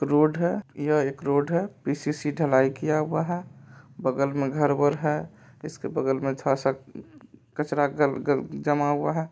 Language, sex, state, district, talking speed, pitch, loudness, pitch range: Maithili, male, Bihar, Supaul, 175 wpm, 145 Hz, -26 LUFS, 135-155 Hz